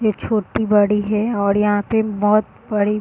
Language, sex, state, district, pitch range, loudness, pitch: Hindi, female, Bihar, Sitamarhi, 205-215 Hz, -18 LUFS, 210 Hz